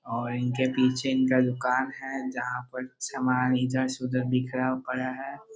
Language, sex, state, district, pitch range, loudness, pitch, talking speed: Hindi, male, Bihar, Muzaffarpur, 125-130 Hz, -28 LUFS, 130 Hz, 160 wpm